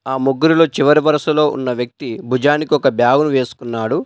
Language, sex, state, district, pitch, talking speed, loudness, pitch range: Telugu, male, Telangana, Adilabad, 135 Hz, 150 wpm, -15 LUFS, 125-150 Hz